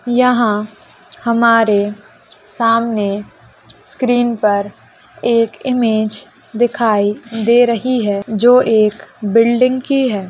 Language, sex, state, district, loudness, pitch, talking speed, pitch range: Hindi, female, Rajasthan, Nagaur, -14 LUFS, 230 Hz, 95 wpm, 210-245 Hz